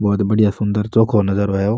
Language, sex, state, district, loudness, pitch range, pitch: Rajasthani, male, Rajasthan, Nagaur, -17 LUFS, 100-105 Hz, 105 Hz